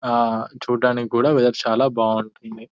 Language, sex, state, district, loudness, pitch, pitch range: Telugu, male, Telangana, Nalgonda, -20 LUFS, 120 Hz, 110-125 Hz